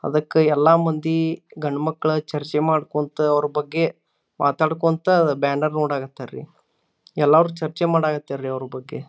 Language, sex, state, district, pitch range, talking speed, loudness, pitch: Kannada, male, Karnataka, Dharwad, 145-160 Hz, 110 wpm, -21 LUFS, 150 Hz